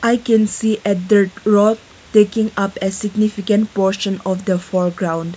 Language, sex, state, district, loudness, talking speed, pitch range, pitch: English, female, Nagaland, Kohima, -17 LUFS, 155 wpm, 190-215 Hz, 205 Hz